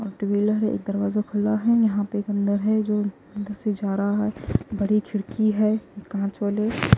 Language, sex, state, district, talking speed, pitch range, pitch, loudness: Hindi, female, Punjab, Kapurthala, 170 wpm, 205-215 Hz, 210 Hz, -24 LUFS